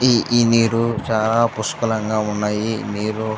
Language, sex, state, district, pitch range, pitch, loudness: Telugu, male, Andhra Pradesh, Visakhapatnam, 110-115 Hz, 110 Hz, -19 LUFS